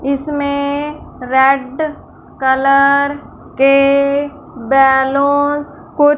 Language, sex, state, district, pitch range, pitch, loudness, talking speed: Hindi, female, Punjab, Fazilka, 270-290 Hz, 280 Hz, -14 LUFS, 60 wpm